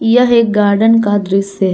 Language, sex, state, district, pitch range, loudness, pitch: Hindi, female, Jharkhand, Palamu, 200-230 Hz, -12 LUFS, 210 Hz